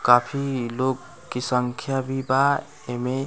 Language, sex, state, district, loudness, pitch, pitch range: Bhojpuri, male, Bihar, Muzaffarpur, -24 LUFS, 130 Hz, 125-135 Hz